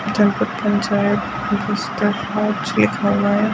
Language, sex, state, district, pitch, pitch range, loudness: Hindi, female, Chhattisgarh, Bastar, 210 Hz, 205-210 Hz, -19 LUFS